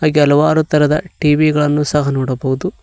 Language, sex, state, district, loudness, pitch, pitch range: Kannada, male, Karnataka, Koppal, -14 LUFS, 150 Hz, 145-155 Hz